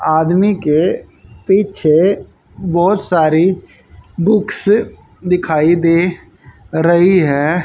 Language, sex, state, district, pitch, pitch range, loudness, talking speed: Hindi, female, Haryana, Jhajjar, 175 Hz, 160-190 Hz, -14 LUFS, 80 wpm